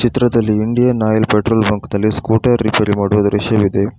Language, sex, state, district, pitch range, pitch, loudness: Kannada, male, Karnataka, Bangalore, 105-115 Hz, 110 Hz, -14 LUFS